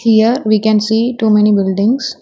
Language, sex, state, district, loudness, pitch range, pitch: English, female, Telangana, Hyderabad, -12 LUFS, 210-230 Hz, 220 Hz